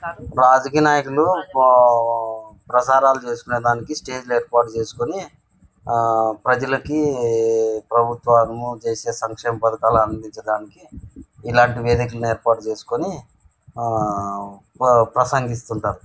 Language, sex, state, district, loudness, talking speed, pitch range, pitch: Telugu, male, Andhra Pradesh, Anantapur, -19 LUFS, 80 wpm, 110-125 Hz, 120 Hz